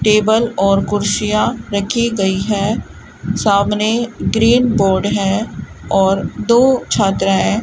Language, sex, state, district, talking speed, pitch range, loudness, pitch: Hindi, female, Rajasthan, Bikaner, 110 wpm, 195-225 Hz, -15 LUFS, 210 Hz